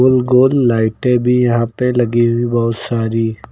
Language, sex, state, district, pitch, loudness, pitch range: Hindi, male, Uttar Pradesh, Lucknow, 120 Hz, -14 LUFS, 115-125 Hz